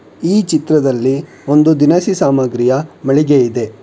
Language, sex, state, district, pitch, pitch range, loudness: Kannada, male, Karnataka, Bangalore, 145 Hz, 135-155 Hz, -13 LUFS